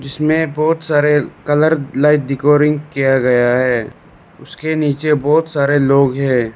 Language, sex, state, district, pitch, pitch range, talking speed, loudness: Hindi, male, Arunachal Pradesh, Lower Dibang Valley, 145 Hz, 135-150 Hz, 135 wpm, -15 LUFS